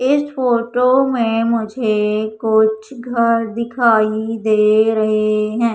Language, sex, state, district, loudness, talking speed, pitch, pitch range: Hindi, female, Madhya Pradesh, Umaria, -16 LUFS, 105 wpm, 225 Hz, 215-240 Hz